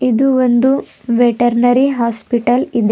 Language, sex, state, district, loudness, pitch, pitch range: Kannada, female, Karnataka, Bidar, -14 LUFS, 245 Hz, 235-255 Hz